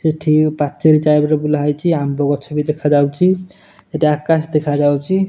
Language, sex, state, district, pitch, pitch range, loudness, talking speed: Odia, male, Odisha, Nuapada, 150 Hz, 145-160 Hz, -15 LUFS, 135 wpm